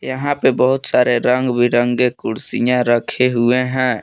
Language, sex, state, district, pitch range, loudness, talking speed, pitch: Hindi, male, Jharkhand, Palamu, 120-130 Hz, -16 LUFS, 150 wpm, 125 Hz